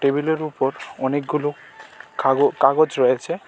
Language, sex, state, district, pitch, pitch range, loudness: Bengali, male, Tripura, West Tripura, 145 Hz, 135-150 Hz, -20 LUFS